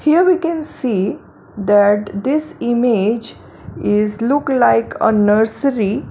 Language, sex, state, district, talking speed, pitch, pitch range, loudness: English, female, Gujarat, Valsad, 120 wpm, 225 Hz, 205-275 Hz, -16 LUFS